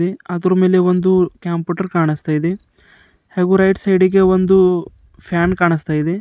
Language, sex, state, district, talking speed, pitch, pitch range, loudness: Kannada, male, Karnataka, Bidar, 145 wpm, 180 Hz, 170-185 Hz, -15 LUFS